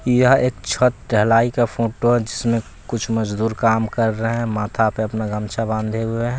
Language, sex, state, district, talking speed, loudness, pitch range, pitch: Hindi, male, Bihar, West Champaran, 190 wpm, -19 LUFS, 110-120 Hz, 115 Hz